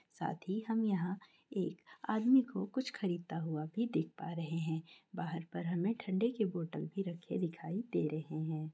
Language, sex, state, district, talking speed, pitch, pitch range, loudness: Hindi, female, Chhattisgarh, Korba, 185 wpm, 180 Hz, 165-210 Hz, -38 LUFS